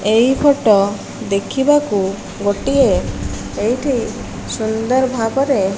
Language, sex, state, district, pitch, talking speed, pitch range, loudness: Odia, female, Odisha, Malkangiri, 220 Hz, 95 wpm, 200-265 Hz, -17 LUFS